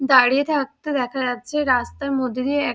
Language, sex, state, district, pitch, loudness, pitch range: Bengali, female, West Bengal, Dakshin Dinajpur, 270 Hz, -21 LUFS, 250-285 Hz